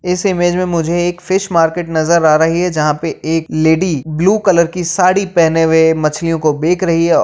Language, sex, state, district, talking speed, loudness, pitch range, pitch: Hindi, male, Uttar Pradesh, Jyotiba Phule Nagar, 230 wpm, -13 LUFS, 160-180 Hz, 170 Hz